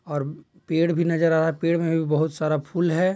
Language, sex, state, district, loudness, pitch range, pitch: Hindi, male, Bihar, Jahanabad, -23 LUFS, 155-170 Hz, 165 Hz